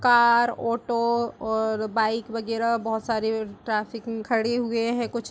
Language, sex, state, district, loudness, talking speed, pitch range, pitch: Hindi, female, Bihar, Gaya, -25 LUFS, 160 wpm, 220-235 Hz, 230 Hz